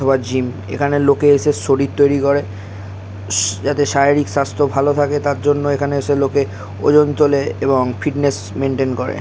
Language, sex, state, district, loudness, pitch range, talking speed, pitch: Bengali, male, West Bengal, Malda, -16 LUFS, 125-145 Hz, 165 wpm, 140 Hz